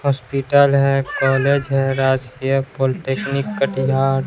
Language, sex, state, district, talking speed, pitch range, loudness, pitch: Hindi, male, Bihar, Katihar, 100 wpm, 135-140 Hz, -18 LUFS, 135 Hz